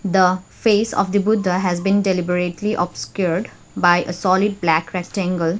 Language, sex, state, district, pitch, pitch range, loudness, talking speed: English, female, Sikkim, Gangtok, 185 Hz, 180-200 Hz, -19 LUFS, 150 wpm